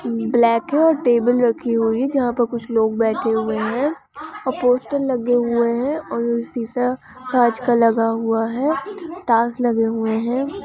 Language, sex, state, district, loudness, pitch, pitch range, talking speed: Hindi, female, Maharashtra, Aurangabad, -19 LUFS, 240 Hz, 230-260 Hz, 175 wpm